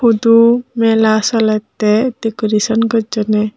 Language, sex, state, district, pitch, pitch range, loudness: Chakma, female, Tripura, Unakoti, 225 Hz, 215-230 Hz, -13 LUFS